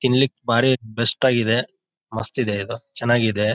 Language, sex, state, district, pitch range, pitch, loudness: Kannada, male, Karnataka, Bijapur, 115-130 Hz, 120 Hz, -20 LUFS